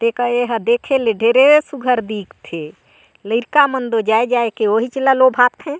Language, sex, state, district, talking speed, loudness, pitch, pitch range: Chhattisgarhi, female, Chhattisgarh, Sarguja, 175 wpm, -15 LUFS, 240 Hz, 225-260 Hz